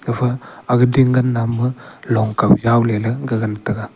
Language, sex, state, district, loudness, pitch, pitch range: Wancho, male, Arunachal Pradesh, Longding, -17 LUFS, 120 Hz, 115-125 Hz